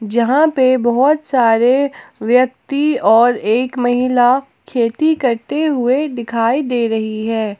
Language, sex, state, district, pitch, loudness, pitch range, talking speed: Hindi, female, Jharkhand, Palamu, 250 Hz, -15 LUFS, 230-275 Hz, 120 wpm